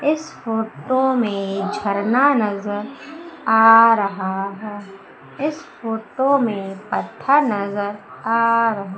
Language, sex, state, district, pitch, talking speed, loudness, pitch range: Hindi, female, Madhya Pradesh, Umaria, 225 Hz, 100 wpm, -19 LUFS, 200-260 Hz